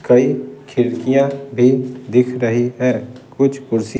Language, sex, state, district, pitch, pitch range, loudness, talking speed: Hindi, male, Bihar, Patna, 125 Hz, 125-135 Hz, -17 LUFS, 135 wpm